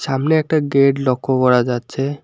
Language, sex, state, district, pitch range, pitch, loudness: Bengali, male, West Bengal, Alipurduar, 130-145 Hz, 135 Hz, -17 LUFS